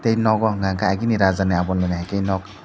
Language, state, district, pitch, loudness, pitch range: Kokborok, Tripura, Dhalai, 95 Hz, -20 LUFS, 95-110 Hz